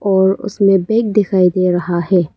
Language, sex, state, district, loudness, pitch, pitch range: Hindi, female, Arunachal Pradesh, Papum Pare, -14 LUFS, 190 Hz, 180-205 Hz